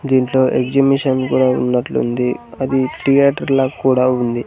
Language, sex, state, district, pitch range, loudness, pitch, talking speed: Telugu, male, Andhra Pradesh, Sri Satya Sai, 125-135 Hz, -16 LUFS, 130 Hz, 105 wpm